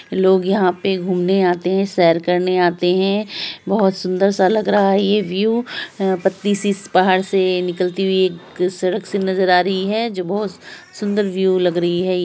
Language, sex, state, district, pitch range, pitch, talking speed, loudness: Hindi, female, Bihar, Araria, 180-200 Hz, 190 Hz, 190 wpm, -17 LUFS